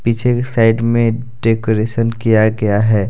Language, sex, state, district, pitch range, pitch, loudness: Hindi, male, Jharkhand, Deoghar, 110-115 Hz, 115 Hz, -15 LUFS